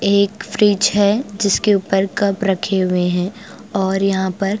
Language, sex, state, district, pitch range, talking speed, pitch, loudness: Hindi, female, Bihar, Patna, 190-205 Hz, 155 wpm, 195 Hz, -17 LUFS